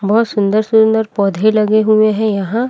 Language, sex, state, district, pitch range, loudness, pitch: Hindi, female, Chhattisgarh, Raipur, 210-220 Hz, -13 LUFS, 215 Hz